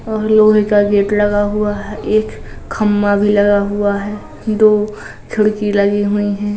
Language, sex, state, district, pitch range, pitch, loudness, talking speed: Hindi, female, Uttar Pradesh, Jalaun, 205-210 Hz, 205 Hz, -14 LUFS, 175 wpm